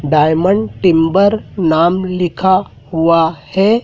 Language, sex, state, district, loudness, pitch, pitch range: Hindi, male, Madhya Pradesh, Dhar, -13 LUFS, 175 Hz, 160-190 Hz